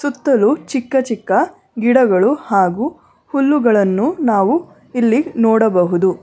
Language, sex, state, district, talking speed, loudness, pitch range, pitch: Kannada, female, Karnataka, Bangalore, 85 wpm, -15 LUFS, 195-280 Hz, 235 Hz